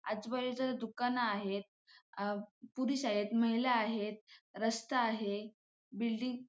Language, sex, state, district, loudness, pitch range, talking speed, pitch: Marathi, female, Maharashtra, Sindhudurg, -36 LUFS, 210-250 Hz, 110 wpm, 230 Hz